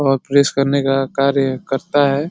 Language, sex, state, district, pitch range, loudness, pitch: Hindi, male, Uttar Pradesh, Deoria, 135-140 Hz, -16 LUFS, 140 Hz